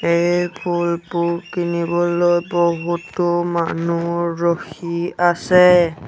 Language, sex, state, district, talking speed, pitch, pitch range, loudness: Assamese, male, Assam, Sonitpur, 70 wpm, 175 Hz, 170-175 Hz, -18 LUFS